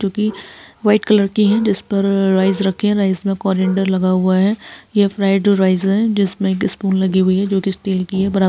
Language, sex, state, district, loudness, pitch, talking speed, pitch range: Hindi, male, Uttarakhand, Tehri Garhwal, -16 LUFS, 195 Hz, 235 wpm, 190-205 Hz